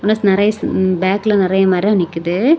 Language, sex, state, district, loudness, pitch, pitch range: Tamil, female, Tamil Nadu, Kanyakumari, -15 LUFS, 195 Hz, 185-210 Hz